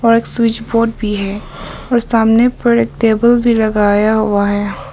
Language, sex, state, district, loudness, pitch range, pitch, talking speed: Hindi, female, Arunachal Pradesh, Papum Pare, -13 LUFS, 210-235 Hz, 225 Hz, 180 wpm